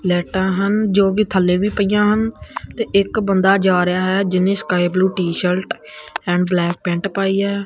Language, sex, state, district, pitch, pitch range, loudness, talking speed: Punjabi, male, Punjab, Kapurthala, 190 Hz, 180-200 Hz, -17 LUFS, 180 wpm